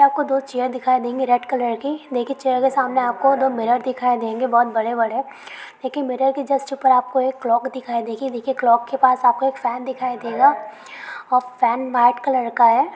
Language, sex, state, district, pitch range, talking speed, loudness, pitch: Hindi, female, Bihar, Kishanganj, 240-265 Hz, 195 wpm, -19 LUFS, 255 Hz